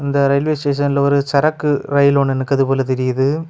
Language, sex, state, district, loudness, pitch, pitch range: Tamil, male, Tamil Nadu, Kanyakumari, -16 LUFS, 140 Hz, 135-145 Hz